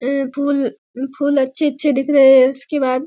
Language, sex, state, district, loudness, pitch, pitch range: Hindi, female, Bihar, Kishanganj, -16 LUFS, 275 Hz, 265-285 Hz